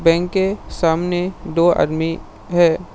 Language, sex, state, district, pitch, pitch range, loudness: Hindi, male, Assam, Sonitpur, 175 Hz, 165-180 Hz, -18 LUFS